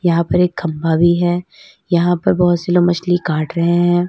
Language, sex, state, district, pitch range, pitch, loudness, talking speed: Hindi, female, Uttar Pradesh, Lalitpur, 170-175 Hz, 175 Hz, -16 LUFS, 220 wpm